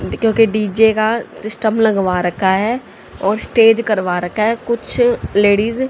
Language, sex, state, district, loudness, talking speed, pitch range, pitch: Hindi, female, Haryana, Charkhi Dadri, -15 LUFS, 150 wpm, 205-225 Hz, 220 Hz